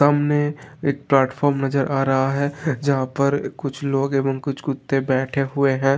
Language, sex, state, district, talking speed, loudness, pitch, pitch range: Hindi, male, Maharashtra, Pune, 170 wpm, -21 LUFS, 140 Hz, 135-145 Hz